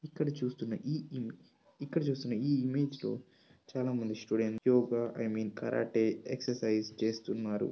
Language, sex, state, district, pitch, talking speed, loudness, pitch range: Telugu, male, Telangana, Karimnagar, 125 Hz, 140 wpm, -34 LUFS, 110-140 Hz